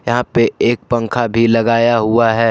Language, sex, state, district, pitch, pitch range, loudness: Hindi, male, Jharkhand, Garhwa, 115 Hz, 115-120 Hz, -14 LUFS